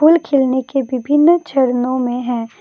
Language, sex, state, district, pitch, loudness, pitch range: Hindi, female, Assam, Kamrup Metropolitan, 260 Hz, -15 LUFS, 250-295 Hz